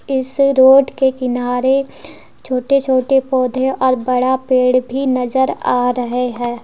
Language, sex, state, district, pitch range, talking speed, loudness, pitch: Hindi, female, Jharkhand, Deoghar, 250-265 Hz, 135 wpm, -15 LUFS, 260 Hz